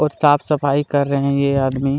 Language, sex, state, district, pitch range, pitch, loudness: Hindi, male, Chhattisgarh, Kabirdham, 140-145 Hz, 140 Hz, -17 LUFS